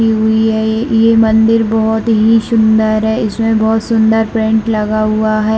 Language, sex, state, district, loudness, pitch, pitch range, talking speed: Hindi, female, Chhattisgarh, Bilaspur, -12 LUFS, 220 Hz, 220-225 Hz, 170 wpm